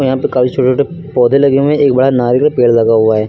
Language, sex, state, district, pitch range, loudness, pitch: Hindi, male, Uttar Pradesh, Lucknow, 120-140 Hz, -11 LUFS, 130 Hz